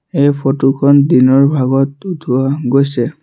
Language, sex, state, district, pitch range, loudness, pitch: Assamese, male, Assam, Sonitpur, 135-145 Hz, -12 LUFS, 140 Hz